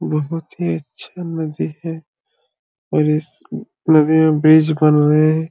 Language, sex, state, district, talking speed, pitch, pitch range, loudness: Hindi, male, Jharkhand, Sahebganj, 130 wpm, 155 Hz, 150-160 Hz, -16 LUFS